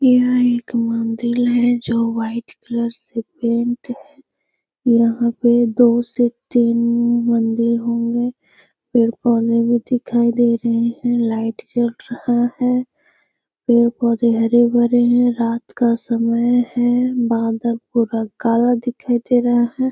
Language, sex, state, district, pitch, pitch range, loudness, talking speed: Hindi, female, Bihar, Gaya, 235 Hz, 235-245 Hz, -17 LUFS, 115 wpm